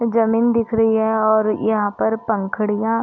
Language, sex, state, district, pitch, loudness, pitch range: Hindi, female, Uttar Pradesh, Deoria, 220 Hz, -18 LUFS, 215-225 Hz